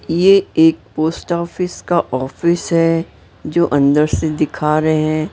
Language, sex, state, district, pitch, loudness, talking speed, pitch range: Hindi, female, Maharashtra, Mumbai Suburban, 160 Hz, -16 LUFS, 145 wpm, 155-170 Hz